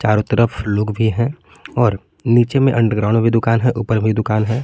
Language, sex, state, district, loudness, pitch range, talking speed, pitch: Hindi, male, Jharkhand, Palamu, -17 LUFS, 110-120 Hz, 205 wpm, 115 Hz